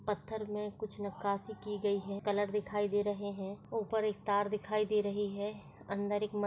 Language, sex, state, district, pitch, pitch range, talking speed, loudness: Hindi, female, Chhattisgarh, Bastar, 205 Hz, 205-210 Hz, 205 wpm, -36 LUFS